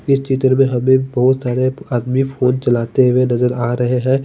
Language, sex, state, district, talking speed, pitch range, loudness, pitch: Hindi, male, Bihar, Patna, 185 wpm, 125-130 Hz, -16 LUFS, 130 Hz